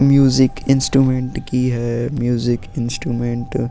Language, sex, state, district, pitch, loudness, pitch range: Hindi, male, Goa, North and South Goa, 125 Hz, -18 LUFS, 120-130 Hz